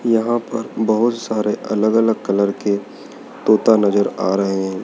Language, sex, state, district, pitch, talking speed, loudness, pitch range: Hindi, male, Madhya Pradesh, Dhar, 110 Hz, 160 wpm, -18 LUFS, 100-115 Hz